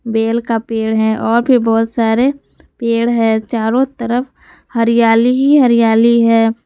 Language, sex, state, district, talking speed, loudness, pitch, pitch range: Hindi, female, Jharkhand, Garhwa, 145 wpm, -13 LUFS, 230 Hz, 225-240 Hz